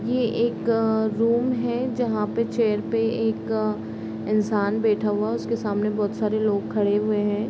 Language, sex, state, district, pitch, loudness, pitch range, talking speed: Hindi, female, Bihar, East Champaran, 215 Hz, -24 LUFS, 205-230 Hz, 185 wpm